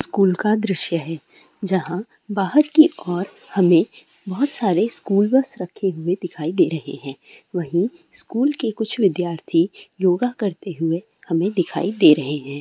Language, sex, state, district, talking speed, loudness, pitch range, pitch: Hindi, female, Uttarakhand, Uttarkashi, 150 wpm, -20 LUFS, 170-215 Hz, 185 Hz